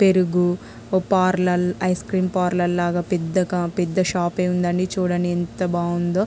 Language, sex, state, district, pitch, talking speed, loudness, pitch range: Telugu, female, Andhra Pradesh, Krishna, 180 Hz, 155 wpm, -21 LUFS, 175-185 Hz